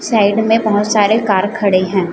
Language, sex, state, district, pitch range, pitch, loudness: Hindi, female, Chhattisgarh, Raipur, 195-220 Hz, 205 Hz, -13 LUFS